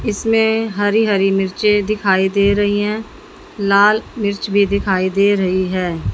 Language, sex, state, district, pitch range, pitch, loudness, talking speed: Hindi, female, Haryana, Jhajjar, 195-215 Hz, 205 Hz, -16 LUFS, 145 wpm